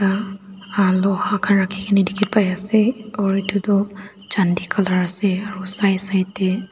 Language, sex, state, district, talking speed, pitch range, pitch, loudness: Nagamese, female, Nagaland, Dimapur, 160 wpm, 190-205 Hz, 200 Hz, -19 LUFS